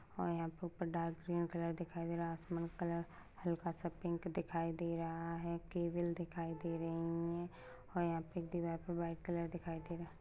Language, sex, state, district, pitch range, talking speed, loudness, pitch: Hindi, female, Rajasthan, Nagaur, 165-170 Hz, 215 wpm, -42 LUFS, 170 Hz